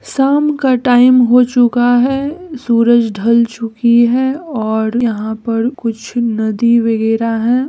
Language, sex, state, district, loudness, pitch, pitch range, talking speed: Hindi, female, Bihar, Gaya, -13 LUFS, 235 Hz, 230-250 Hz, 135 wpm